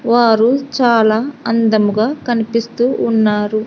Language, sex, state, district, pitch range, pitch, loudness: Telugu, female, Andhra Pradesh, Sri Satya Sai, 220-240 Hz, 230 Hz, -14 LUFS